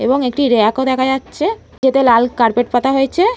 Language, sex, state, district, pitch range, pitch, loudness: Bengali, female, West Bengal, Malda, 245-270 Hz, 265 Hz, -14 LUFS